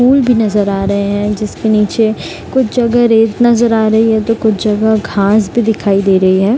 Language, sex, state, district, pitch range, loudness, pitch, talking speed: Hindi, female, Bihar, Gopalganj, 205-230 Hz, -12 LUFS, 220 Hz, 220 wpm